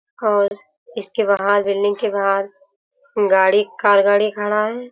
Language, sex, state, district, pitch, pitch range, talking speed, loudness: Hindi, female, Jharkhand, Sahebganj, 205 Hz, 200-215 Hz, 145 wpm, -17 LUFS